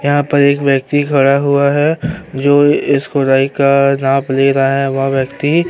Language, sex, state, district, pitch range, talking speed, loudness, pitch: Hindi, male, Uttar Pradesh, Hamirpur, 135-145 Hz, 190 wpm, -13 LUFS, 140 Hz